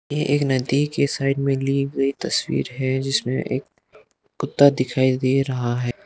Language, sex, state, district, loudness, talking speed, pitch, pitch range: Hindi, male, Arunachal Pradesh, Lower Dibang Valley, -21 LUFS, 170 wpm, 135 Hz, 130-140 Hz